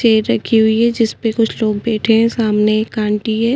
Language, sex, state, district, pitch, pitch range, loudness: Hindi, female, Uttarakhand, Tehri Garhwal, 225 Hz, 215-230 Hz, -15 LUFS